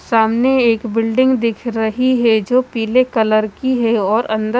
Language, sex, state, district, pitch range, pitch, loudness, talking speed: Hindi, female, Chandigarh, Chandigarh, 220-255 Hz, 230 Hz, -15 LUFS, 170 wpm